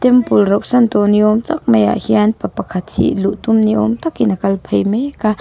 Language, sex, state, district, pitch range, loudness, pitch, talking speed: Mizo, female, Mizoram, Aizawl, 205-240 Hz, -14 LUFS, 215 Hz, 220 wpm